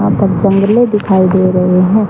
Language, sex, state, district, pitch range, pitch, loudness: Hindi, male, Haryana, Charkhi Dadri, 185-205 Hz, 190 Hz, -11 LUFS